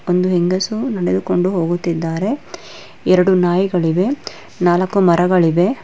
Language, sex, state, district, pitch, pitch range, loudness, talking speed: Kannada, female, Karnataka, Bangalore, 180 Hz, 175-190 Hz, -16 LUFS, 80 wpm